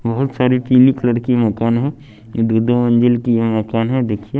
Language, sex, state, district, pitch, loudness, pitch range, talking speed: Hindi, male, Chandigarh, Chandigarh, 120 Hz, -16 LUFS, 115-125 Hz, 230 wpm